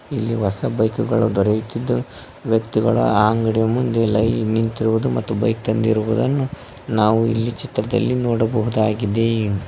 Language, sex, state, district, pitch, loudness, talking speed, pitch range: Kannada, male, Karnataka, Koppal, 115 Hz, -19 LUFS, 110 wpm, 110-120 Hz